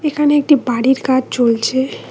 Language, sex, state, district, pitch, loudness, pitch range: Bengali, female, West Bengal, Cooch Behar, 260 Hz, -15 LUFS, 250-290 Hz